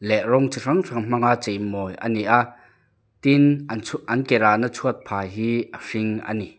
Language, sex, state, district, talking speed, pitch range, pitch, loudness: Mizo, male, Mizoram, Aizawl, 210 wpm, 110-125 Hz, 115 Hz, -22 LUFS